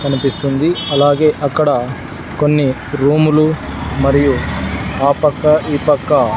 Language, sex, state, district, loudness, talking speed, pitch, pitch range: Telugu, male, Andhra Pradesh, Sri Satya Sai, -14 LUFS, 95 wpm, 145 Hz, 140-150 Hz